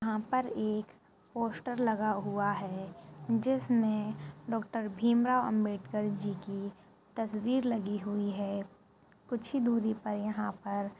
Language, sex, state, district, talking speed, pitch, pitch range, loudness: Hindi, female, Uttar Pradesh, Budaun, 135 wpm, 215 Hz, 200-230 Hz, -33 LUFS